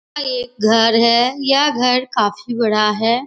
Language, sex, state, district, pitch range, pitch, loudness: Hindi, female, Uttar Pradesh, Etah, 225-255 Hz, 240 Hz, -15 LUFS